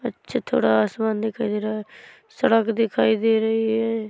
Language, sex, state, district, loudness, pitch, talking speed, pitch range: Hindi, female, Chhattisgarh, Korba, -22 LUFS, 220 Hz, 175 wpm, 215-225 Hz